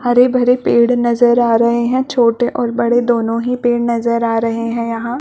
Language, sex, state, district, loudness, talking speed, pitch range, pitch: Hindi, female, Chhattisgarh, Balrampur, -14 LUFS, 195 wpm, 235-245 Hz, 240 Hz